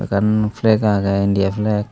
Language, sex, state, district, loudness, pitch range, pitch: Chakma, male, Tripura, Dhalai, -17 LUFS, 100-110 Hz, 105 Hz